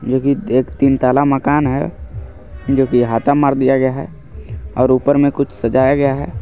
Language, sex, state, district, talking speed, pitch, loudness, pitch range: Hindi, male, Jharkhand, Garhwa, 195 wpm, 135 Hz, -15 LUFS, 130-140 Hz